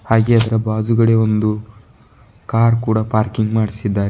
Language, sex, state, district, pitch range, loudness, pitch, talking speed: Kannada, male, Karnataka, Bidar, 110-115 Hz, -16 LUFS, 110 Hz, 115 wpm